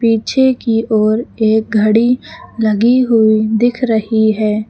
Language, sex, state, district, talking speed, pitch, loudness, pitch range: Hindi, female, Uttar Pradesh, Lucknow, 125 wpm, 225 Hz, -13 LUFS, 215-240 Hz